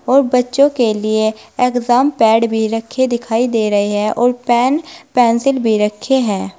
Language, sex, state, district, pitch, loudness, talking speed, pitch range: Hindi, female, Uttar Pradesh, Saharanpur, 240 Hz, -15 LUFS, 165 wpm, 220-255 Hz